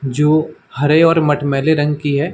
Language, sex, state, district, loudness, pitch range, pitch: Hindi, male, Uttar Pradesh, Muzaffarnagar, -15 LUFS, 145-155 Hz, 150 Hz